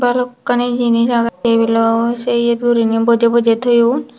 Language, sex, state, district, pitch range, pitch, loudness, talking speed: Chakma, female, Tripura, Dhalai, 230-245 Hz, 235 Hz, -14 LUFS, 155 wpm